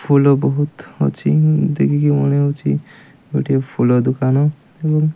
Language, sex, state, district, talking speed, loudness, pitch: Odia, male, Odisha, Malkangiri, 140 wpm, -17 LUFS, 125 Hz